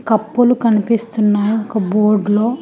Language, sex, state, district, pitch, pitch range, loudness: Telugu, female, Telangana, Hyderabad, 220 Hz, 210-230 Hz, -15 LUFS